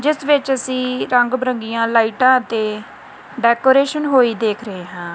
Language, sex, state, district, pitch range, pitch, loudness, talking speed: Punjabi, female, Punjab, Kapurthala, 225-265 Hz, 245 Hz, -16 LUFS, 150 wpm